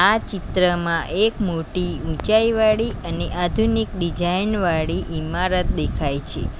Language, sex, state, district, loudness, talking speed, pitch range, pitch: Gujarati, female, Gujarat, Valsad, -21 LUFS, 110 wpm, 165-215 Hz, 180 Hz